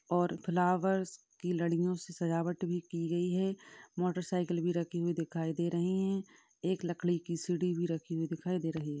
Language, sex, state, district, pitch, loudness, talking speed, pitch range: Hindi, female, Uttar Pradesh, Budaun, 175 Hz, -34 LUFS, 200 wpm, 170-180 Hz